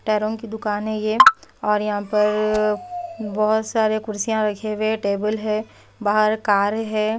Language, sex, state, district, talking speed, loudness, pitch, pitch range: Hindi, female, Haryana, Rohtak, 140 wpm, -21 LUFS, 215 Hz, 210-220 Hz